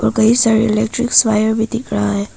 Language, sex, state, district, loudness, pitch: Hindi, female, Arunachal Pradesh, Papum Pare, -14 LUFS, 220 Hz